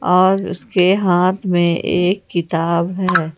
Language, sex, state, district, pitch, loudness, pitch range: Hindi, female, Jharkhand, Ranchi, 180 Hz, -16 LUFS, 170-185 Hz